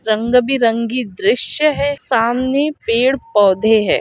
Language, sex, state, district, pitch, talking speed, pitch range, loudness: Hindi, female, Chhattisgarh, Bilaspur, 250 Hz, 135 wpm, 225-280 Hz, -15 LUFS